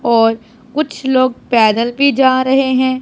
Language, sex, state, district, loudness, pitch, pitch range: Hindi, female, Punjab, Pathankot, -13 LUFS, 255 Hz, 235-265 Hz